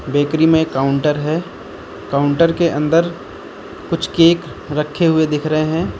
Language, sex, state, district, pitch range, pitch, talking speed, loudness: Hindi, male, Uttar Pradesh, Lucknow, 150-165 Hz, 155 Hz, 140 wpm, -16 LUFS